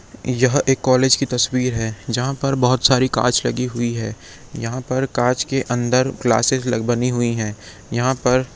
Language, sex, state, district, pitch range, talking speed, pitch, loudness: Hindi, male, Chhattisgarh, Raigarh, 120-130 Hz, 170 wpm, 125 Hz, -19 LUFS